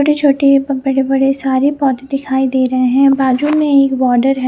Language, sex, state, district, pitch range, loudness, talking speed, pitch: Hindi, female, Punjab, Fazilka, 265-275 Hz, -13 LUFS, 215 wpm, 270 Hz